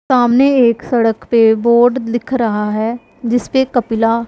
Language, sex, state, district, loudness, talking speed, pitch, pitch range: Hindi, female, Punjab, Pathankot, -14 LUFS, 140 wpm, 235 Hz, 225-245 Hz